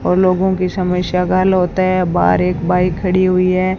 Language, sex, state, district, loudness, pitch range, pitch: Hindi, female, Rajasthan, Bikaner, -15 LUFS, 180-185 Hz, 185 Hz